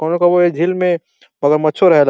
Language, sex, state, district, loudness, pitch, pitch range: Bhojpuri, male, Uttar Pradesh, Deoria, -15 LUFS, 170 Hz, 155-175 Hz